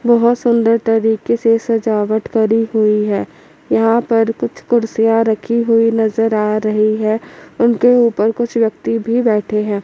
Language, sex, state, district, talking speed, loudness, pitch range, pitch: Hindi, female, Chandigarh, Chandigarh, 150 wpm, -15 LUFS, 215-235 Hz, 225 Hz